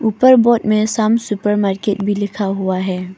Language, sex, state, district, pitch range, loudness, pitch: Hindi, female, Arunachal Pradesh, Papum Pare, 195-220 Hz, -15 LUFS, 205 Hz